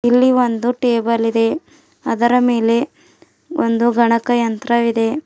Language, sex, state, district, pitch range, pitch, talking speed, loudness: Kannada, female, Karnataka, Bidar, 230-250 Hz, 235 Hz, 105 wpm, -16 LUFS